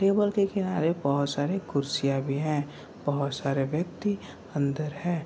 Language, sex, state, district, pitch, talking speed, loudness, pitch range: Hindi, male, Bihar, Kishanganj, 150 Hz, 170 wpm, -28 LUFS, 140-190 Hz